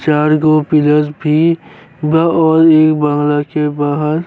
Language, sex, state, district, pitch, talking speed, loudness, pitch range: Bhojpuri, male, Uttar Pradesh, Gorakhpur, 155 Hz, 140 wpm, -12 LUFS, 150-160 Hz